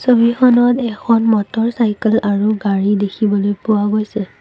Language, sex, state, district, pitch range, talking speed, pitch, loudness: Assamese, female, Assam, Kamrup Metropolitan, 205-230 Hz, 110 wpm, 215 Hz, -15 LUFS